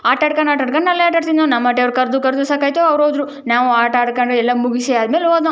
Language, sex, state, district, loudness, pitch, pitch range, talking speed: Kannada, female, Karnataka, Chamarajanagar, -15 LUFS, 265 Hz, 245-310 Hz, 215 wpm